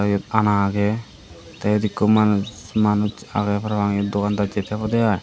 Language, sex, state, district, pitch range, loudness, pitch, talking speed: Chakma, male, Tripura, Dhalai, 100-105 Hz, -21 LUFS, 105 Hz, 150 wpm